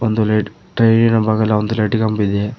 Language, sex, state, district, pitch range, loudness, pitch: Kannada, male, Karnataka, Koppal, 105-110 Hz, -16 LUFS, 110 Hz